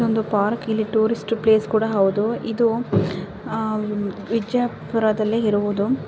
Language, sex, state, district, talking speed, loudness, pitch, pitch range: Kannada, female, Karnataka, Bijapur, 110 wpm, -21 LUFS, 220 Hz, 205-230 Hz